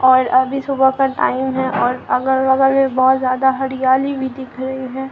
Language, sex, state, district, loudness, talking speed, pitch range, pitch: Hindi, female, Bihar, Katihar, -16 LUFS, 200 wpm, 260-265 Hz, 265 Hz